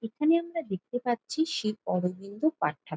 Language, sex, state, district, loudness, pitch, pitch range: Bengali, female, West Bengal, Jalpaiguri, -30 LUFS, 245 Hz, 210-320 Hz